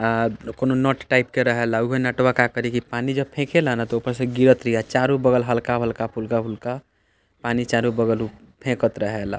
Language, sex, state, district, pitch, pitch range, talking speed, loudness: Bhojpuri, male, Bihar, East Champaran, 120 Hz, 115-130 Hz, 205 wpm, -21 LUFS